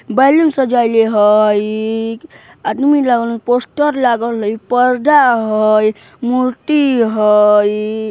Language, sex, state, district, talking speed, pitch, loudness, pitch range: Bajjika, female, Bihar, Vaishali, 90 wpm, 235 Hz, -13 LUFS, 215-255 Hz